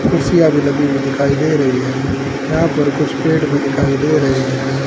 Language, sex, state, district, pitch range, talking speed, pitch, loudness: Hindi, male, Haryana, Charkhi Dadri, 135-150 Hz, 210 wpm, 140 Hz, -15 LUFS